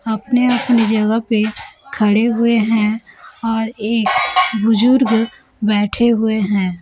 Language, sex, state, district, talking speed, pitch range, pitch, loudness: Hindi, female, Chhattisgarh, Raipur, 105 wpm, 215-240 Hz, 225 Hz, -16 LUFS